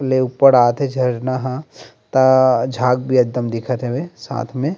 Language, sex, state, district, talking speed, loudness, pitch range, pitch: Chhattisgarhi, male, Chhattisgarh, Rajnandgaon, 175 wpm, -17 LUFS, 125-135 Hz, 130 Hz